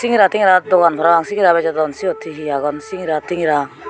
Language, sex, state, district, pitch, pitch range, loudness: Chakma, female, Tripura, Unakoti, 170 Hz, 155-185 Hz, -16 LUFS